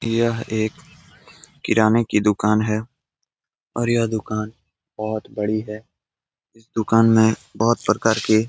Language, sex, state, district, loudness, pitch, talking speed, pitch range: Hindi, male, Bihar, Jamui, -20 LUFS, 110 Hz, 135 wpm, 110-115 Hz